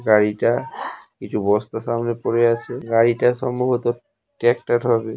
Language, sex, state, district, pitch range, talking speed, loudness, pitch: Bengali, male, West Bengal, North 24 Parganas, 115-120 Hz, 115 wpm, -20 LUFS, 120 Hz